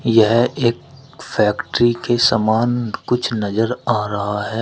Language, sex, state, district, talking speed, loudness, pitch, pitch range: Hindi, male, Uttar Pradesh, Shamli, 130 wpm, -18 LUFS, 115 Hz, 110-120 Hz